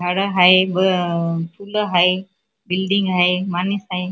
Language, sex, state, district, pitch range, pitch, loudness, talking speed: Marathi, female, Maharashtra, Chandrapur, 180-195 Hz, 185 Hz, -18 LUFS, 130 wpm